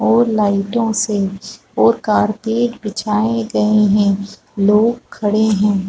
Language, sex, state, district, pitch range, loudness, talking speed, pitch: Hindi, female, Chhattisgarh, Balrampur, 205-225 Hz, -16 LUFS, 120 wpm, 210 Hz